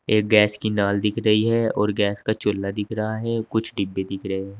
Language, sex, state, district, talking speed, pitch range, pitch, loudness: Hindi, male, Uttar Pradesh, Saharanpur, 250 wpm, 100-110 Hz, 105 Hz, -22 LUFS